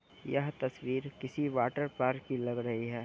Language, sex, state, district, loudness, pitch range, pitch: Hindi, female, Bihar, Purnia, -35 LUFS, 120-140 Hz, 130 Hz